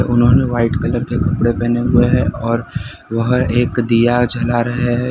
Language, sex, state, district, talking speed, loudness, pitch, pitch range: Hindi, male, Gujarat, Valsad, 175 wpm, -15 LUFS, 120 Hz, 115-120 Hz